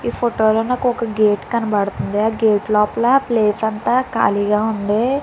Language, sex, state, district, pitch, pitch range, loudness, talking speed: Telugu, female, Andhra Pradesh, Chittoor, 220 Hz, 210-240 Hz, -17 LUFS, 150 wpm